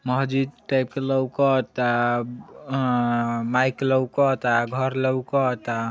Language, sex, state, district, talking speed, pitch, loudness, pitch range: Bhojpuri, male, Uttar Pradesh, Ghazipur, 120 wpm, 130 Hz, -23 LUFS, 120-135 Hz